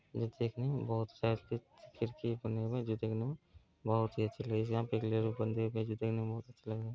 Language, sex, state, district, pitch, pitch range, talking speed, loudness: Hindi, male, Bihar, Gopalganj, 115 Hz, 110-115 Hz, 145 wpm, -37 LUFS